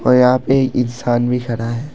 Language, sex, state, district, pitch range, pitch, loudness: Hindi, male, Assam, Kamrup Metropolitan, 120-125 Hz, 125 Hz, -16 LUFS